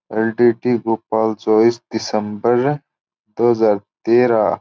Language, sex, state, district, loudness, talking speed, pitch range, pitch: Marwari, male, Rajasthan, Churu, -17 LUFS, 90 wpm, 110-120 Hz, 115 Hz